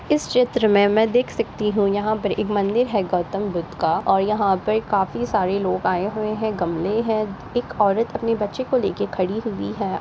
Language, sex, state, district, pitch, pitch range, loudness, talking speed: Hindi, female, Uttar Pradesh, Ghazipur, 210 Hz, 195-225 Hz, -21 LUFS, 210 wpm